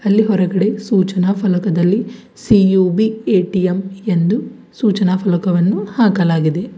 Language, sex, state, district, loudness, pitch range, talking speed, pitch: Kannada, female, Karnataka, Bidar, -15 LUFS, 185-210 Hz, 90 wpm, 190 Hz